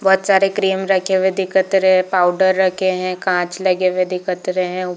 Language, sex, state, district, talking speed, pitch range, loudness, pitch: Hindi, female, Chhattisgarh, Bilaspur, 205 wpm, 185-190 Hz, -17 LUFS, 185 Hz